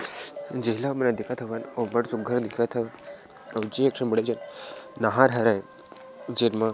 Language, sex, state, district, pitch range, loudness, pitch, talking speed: Chhattisgarhi, male, Chhattisgarh, Sarguja, 115-130 Hz, -26 LUFS, 120 Hz, 170 wpm